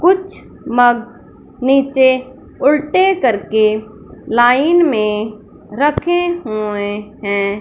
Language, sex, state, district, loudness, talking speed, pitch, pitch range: Hindi, female, Punjab, Fazilka, -15 LUFS, 80 wpm, 245 Hz, 215-295 Hz